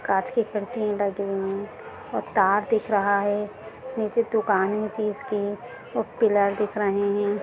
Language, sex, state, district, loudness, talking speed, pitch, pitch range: Hindi, female, Bihar, Darbhanga, -25 LUFS, 160 wpm, 205 Hz, 200-215 Hz